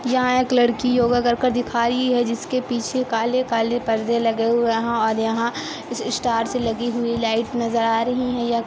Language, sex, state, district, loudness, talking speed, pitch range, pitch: Hindi, female, Chhattisgarh, Sarguja, -21 LUFS, 185 wpm, 230-245 Hz, 235 Hz